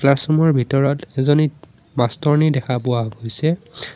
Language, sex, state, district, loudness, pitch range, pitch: Assamese, male, Assam, Sonitpur, -18 LUFS, 125-155 Hz, 140 Hz